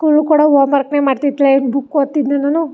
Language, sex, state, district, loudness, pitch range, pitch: Kannada, female, Karnataka, Chamarajanagar, -14 LUFS, 275-300 Hz, 280 Hz